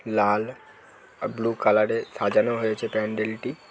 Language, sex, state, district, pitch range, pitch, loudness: Bengali, male, West Bengal, North 24 Parganas, 110-115 Hz, 110 Hz, -25 LUFS